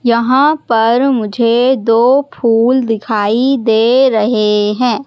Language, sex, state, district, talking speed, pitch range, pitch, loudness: Hindi, female, Madhya Pradesh, Katni, 105 wpm, 225-260 Hz, 235 Hz, -12 LUFS